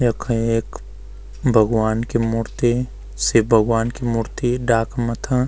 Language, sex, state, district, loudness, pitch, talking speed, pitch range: Garhwali, male, Uttarakhand, Uttarkashi, -19 LUFS, 115 Hz, 130 wpm, 110-120 Hz